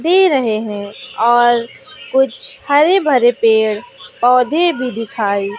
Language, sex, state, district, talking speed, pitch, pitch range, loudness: Hindi, female, Bihar, West Champaran, 120 wpm, 240 Hz, 220-270 Hz, -14 LUFS